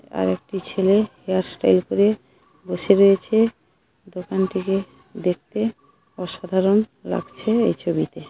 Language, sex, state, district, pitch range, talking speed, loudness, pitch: Bengali, female, West Bengal, Paschim Medinipur, 180-210 Hz, 100 wpm, -21 LUFS, 190 Hz